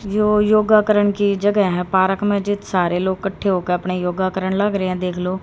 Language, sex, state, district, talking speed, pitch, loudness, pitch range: Hindi, female, Haryana, Rohtak, 230 wpm, 195 Hz, -18 LUFS, 185-205 Hz